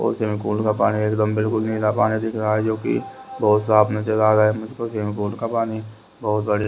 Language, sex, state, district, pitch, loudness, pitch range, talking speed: Hindi, male, Haryana, Rohtak, 110 Hz, -21 LUFS, 105-110 Hz, 235 wpm